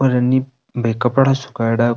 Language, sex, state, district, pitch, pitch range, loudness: Rajasthani, male, Rajasthan, Nagaur, 125 Hz, 120-135 Hz, -17 LUFS